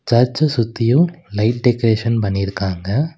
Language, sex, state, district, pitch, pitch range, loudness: Tamil, male, Tamil Nadu, Nilgiris, 115 Hz, 105-125 Hz, -17 LUFS